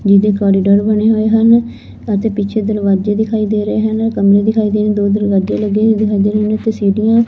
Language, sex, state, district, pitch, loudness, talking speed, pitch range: Punjabi, female, Punjab, Fazilka, 210 Hz, -13 LUFS, 205 wpm, 205-220 Hz